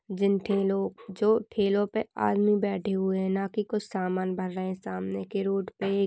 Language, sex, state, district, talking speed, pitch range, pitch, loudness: Hindi, female, Uttar Pradesh, Budaun, 215 wpm, 190-205 Hz, 195 Hz, -28 LUFS